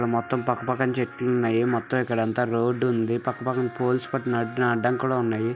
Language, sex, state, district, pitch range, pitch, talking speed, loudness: Telugu, male, Andhra Pradesh, Visakhapatnam, 115-125 Hz, 125 Hz, 185 wpm, -25 LUFS